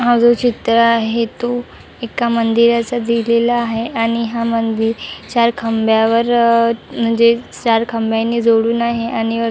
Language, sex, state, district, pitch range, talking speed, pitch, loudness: Marathi, male, Maharashtra, Chandrapur, 230-235 Hz, 130 wpm, 230 Hz, -15 LUFS